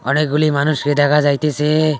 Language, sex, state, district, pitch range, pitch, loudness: Bengali, male, West Bengal, Cooch Behar, 145-155 Hz, 150 Hz, -16 LUFS